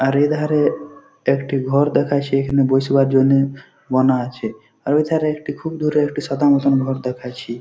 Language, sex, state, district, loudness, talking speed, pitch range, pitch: Bengali, male, West Bengal, Jhargram, -18 LUFS, 175 wpm, 130-145 Hz, 135 Hz